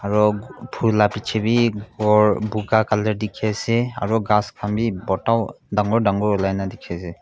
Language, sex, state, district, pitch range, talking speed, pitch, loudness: Nagamese, male, Nagaland, Kohima, 105-110 Hz, 165 wpm, 105 Hz, -20 LUFS